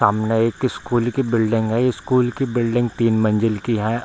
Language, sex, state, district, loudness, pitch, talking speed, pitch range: Hindi, male, Bihar, Bhagalpur, -19 LUFS, 115 Hz, 190 wpm, 110-120 Hz